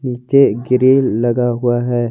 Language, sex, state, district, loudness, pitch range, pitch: Hindi, male, Jharkhand, Garhwa, -14 LUFS, 120-130 Hz, 125 Hz